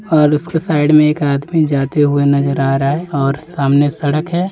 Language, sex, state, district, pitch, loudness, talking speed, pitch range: Hindi, male, Jharkhand, Deoghar, 145 Hz, -14 LUFS, 210 wpm, 140-155 Hz